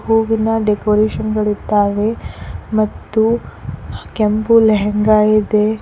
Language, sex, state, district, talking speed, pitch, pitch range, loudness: Kannada, female, Karnataka, Koppal, 70 wpm, 215 Hz, 210-220 Hz, -15 LUFS